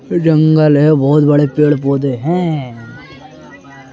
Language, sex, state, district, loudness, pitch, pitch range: Hindi, male, Madhya Pradesh, Bhopal, -12 LUFS, 145 Hz, 140-155 Hz